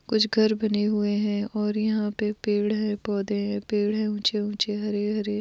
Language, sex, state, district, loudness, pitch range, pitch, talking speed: Hindi, female, Goa, North and South Goa, -25 LUFS, 205-215 Hz, 210 Hz, 190 wpm